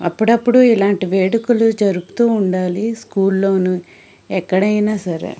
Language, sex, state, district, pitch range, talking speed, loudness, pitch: Telugu, female, Andhra Pradesh, Srikakulam, 185-225 Hz, 100 wpm, -16 LUFS, 200 Hz